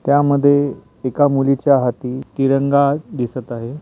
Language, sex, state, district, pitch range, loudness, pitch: Marathi, male, Maharashtra, Nagpur, 125-140 Hz, -17 LUFS, 135 Hz